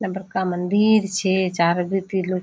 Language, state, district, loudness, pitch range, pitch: Surjapuri, Bihar, Kishanganj, -21 LUFS, 180-195 Hz, 190 Hz